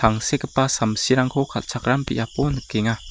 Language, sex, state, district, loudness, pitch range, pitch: Garo, male, Meghalaya, West Garo Hills, -22 LUFS, 115-135 Hz, 125 Hz